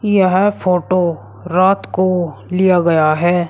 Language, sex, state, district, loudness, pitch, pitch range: Hindi, male, Uttar Pradesh, Shamli, -15 LUFS, 180 Hz, 170-185 Hz